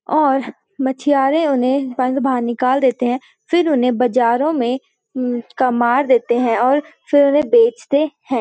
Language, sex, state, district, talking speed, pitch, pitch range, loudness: Hindi, female, Uttarakhand, Uttarkashi, 155 wpm, 265 Hz, 250-295 Hz, -17 LUFS